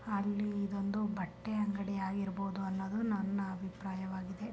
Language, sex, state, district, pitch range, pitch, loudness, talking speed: Kannada, female, Karnataka, Bellary, 190-205 Hz, 200 Hz, -37 LUFS, 130 wpm